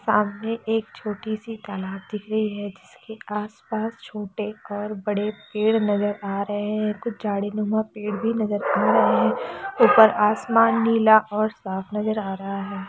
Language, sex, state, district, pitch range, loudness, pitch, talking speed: Hindi, female, Chhattisgarh, Raigarh, 205-220 Hz, -23 LUFS, 210 Hz, 165 wpm